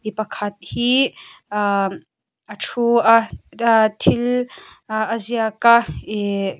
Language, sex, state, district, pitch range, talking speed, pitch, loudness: Mizo, female, Mizoram, Aizawl, 210-240 Hz, 120 wpm, 225 Hz, -19 LUFS